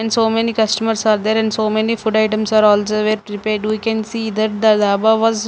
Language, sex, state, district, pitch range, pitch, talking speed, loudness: English, female, Punjab, Fazilka, 215-225 Hz, 220 Hz, 220 wpm, -16 LUFS